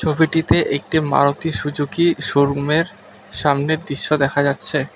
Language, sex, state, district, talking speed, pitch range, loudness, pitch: Bengali, male, West Bengal, Alipurduar, 110 wpm, 140-160 Hz, -18 LUFS, 145 Hz